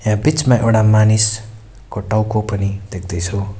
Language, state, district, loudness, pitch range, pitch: Nepali, West Bengal, Darjeeling, -16 LUFS, 100-110 Hz, 110 Hz